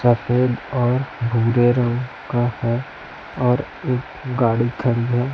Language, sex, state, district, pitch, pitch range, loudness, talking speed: Hindi, male, Chhattisgarh, Raipur, 120 Hz, 120-125 Hz, -20 LUFS, 125 wpm